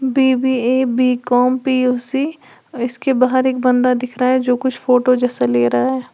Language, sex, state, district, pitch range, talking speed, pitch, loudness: Hindi, female, Uttar Pradesh, Lalitpur, 250-260 Hz, 165 wpm, 255 Hz, -16 LUFS